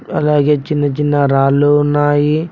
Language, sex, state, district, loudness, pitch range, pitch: Telugu, male, Telangana, Mahabubabad, -13 LUFS, 145-150 Hz, 145 Hz